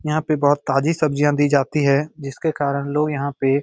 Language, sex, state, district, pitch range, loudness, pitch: Hindi, male, Bihar, Lakhisarai, 140-150 Hz, -20 LUFS, 145 Hz